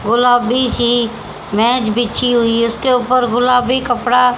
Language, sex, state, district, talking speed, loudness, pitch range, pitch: Hindi, female, Haryana, Jhajjar, 135 wpm, -14 LUFS, 235-250 Hz, 245 Hz